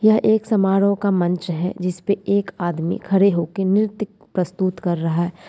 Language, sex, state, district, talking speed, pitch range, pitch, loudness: Hindi, female, Bihar, East Champaran, 175 wpm, 175-200 Hz, 190 Hz, -20 LUFS